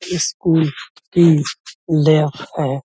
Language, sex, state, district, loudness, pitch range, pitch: Hindi, male, Uttar Pradesh, Budaun, -17 LUFS, 150-170 Hz, 155 Hz